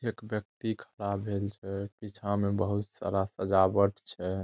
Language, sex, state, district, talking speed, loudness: Maithili, male, Bihar, Saharsa, 150 wpm, -31 LUFS